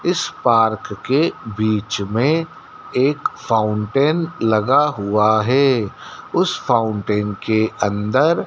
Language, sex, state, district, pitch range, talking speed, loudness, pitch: Hindi, male, Madhya Pradesh, Dhar, 105-130 Hz, 100 wpm, -18 LUFS, 110 Hz